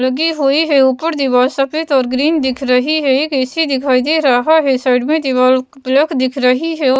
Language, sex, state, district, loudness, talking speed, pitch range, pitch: Hindi, female, Bihar, West Champaran, -14 LUFS, 215 wpm, 255-305 Hz, 270 Hz